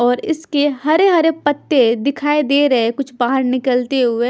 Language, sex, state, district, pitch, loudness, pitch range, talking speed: Hindi, female, Punjab, Pathankot, 275 Hz, -16 LUFS, 250-295 Hz, 165 wpm